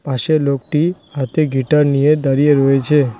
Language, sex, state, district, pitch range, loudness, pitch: Bengali, male, West Bengal, Cooch Behar, 135-150 Hz, -15 LUFS, 145 Hz